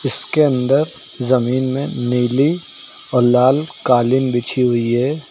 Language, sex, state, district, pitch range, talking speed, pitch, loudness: Hindi, male, Uttar Pradesh, Lucknow, 125-140 Hz, 125 wpm, 130 Hz, -17 LUFS